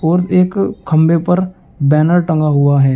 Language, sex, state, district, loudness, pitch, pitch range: Hindi, male, Uttar Pradesh, Shamli, -13 LUFS, 165 Hz, 150-180 Hz